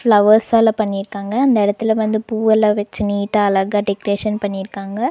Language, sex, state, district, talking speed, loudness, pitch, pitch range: Tamil, female, Tamil Nadu, Nilgiris, 140 wpm, -17 LUFS, 210 Hz, 200-220 Hz